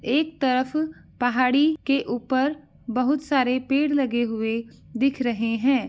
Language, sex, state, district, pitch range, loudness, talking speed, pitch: Hindi, female, Uttar Pradesh, Ghazipur, 240-280 Hz, -23 LUFS, 130 wpm, 260 Hz